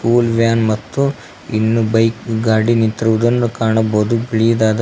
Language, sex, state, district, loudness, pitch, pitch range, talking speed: Kannada, male, Karnataka, Koppal, -15 LUFS, 115 Hz, 110-115 Hz, 110 wpm